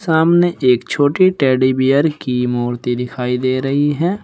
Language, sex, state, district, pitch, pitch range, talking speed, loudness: Hindi, male, Uttar Pradesh, Shamli, 135 Hz, 125-160 Hz, 155 wpm, -16 LUFS